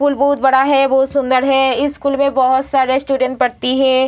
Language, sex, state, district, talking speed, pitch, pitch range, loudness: Hindi, female, Bihar, Samastipur, 220 wpm, 265 Hz, 260-280 Hz, -14 LUFS